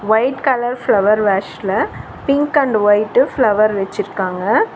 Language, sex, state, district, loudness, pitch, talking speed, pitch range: Tamil, female, Tamil Nadu, Chennai, -16 LUFS, 220 Hz, 115 wpm, 205-270 Hz